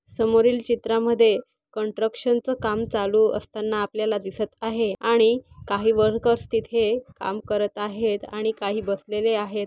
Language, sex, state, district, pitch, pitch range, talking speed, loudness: Marathi, female, Maharashtra, Aurangabad, 220 Hz, 210-230 Hz, 130 wpm, -23 LUFS